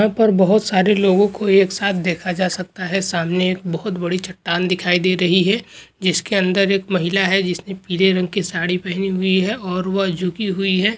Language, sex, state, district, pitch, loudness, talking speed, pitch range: Hindi, male, West Bengal, Jhargram, 185 Hz, -18 LUFS, 215 wpm, 180-195 Hz